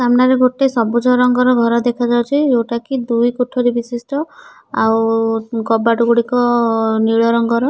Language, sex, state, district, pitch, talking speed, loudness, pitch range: Odia, female, Odisha, Nuapada, 240 Hz, 115 wpm, -15 LUFS, 230-250 Hz